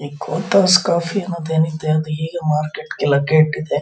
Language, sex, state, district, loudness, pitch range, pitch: Kannada, male, Karnataka, Mysore, -18 LUFS, 155-170 Hz, 160 Hz